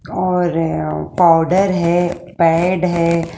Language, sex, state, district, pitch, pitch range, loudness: Hindi, female, Himachal Pradesh, Shimla, 170 Hz, 165-180 Hz, -16 LUFS